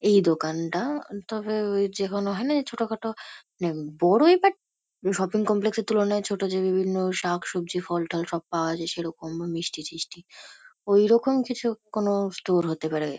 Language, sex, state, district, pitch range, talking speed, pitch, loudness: Bengali, female, West Bengal, Kolkata, 170-220 Hz, 150 wpm, 195 Hz, -25 LUFS